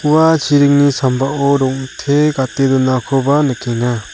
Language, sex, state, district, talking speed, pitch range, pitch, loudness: Garo, male, Meghalaya, South Garo Hills, 100 wpm, 130-145 Hz, 135 Hz, -14 LUFS